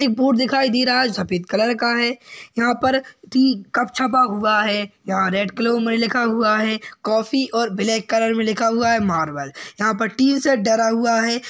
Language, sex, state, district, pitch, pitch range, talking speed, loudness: Hindi, male, Maharashtra, Chandrapur, 230 Hz, 215-250 Hz, 210 wpm, -19 LUFS